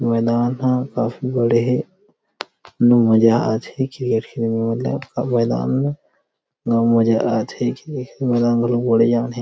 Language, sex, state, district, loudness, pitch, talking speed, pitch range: Chhattisgarhi, male, Chhattisgarh, Rajnandgaon, -19 LUFS, 120 Hz, 95 wpm, 115-125 Hz